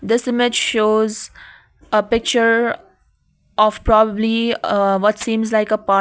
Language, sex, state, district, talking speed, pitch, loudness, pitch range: English, female, Sikkim, Gangtok, 140 wpm, 220 Hz, -17 LUFS, 215-230 Hz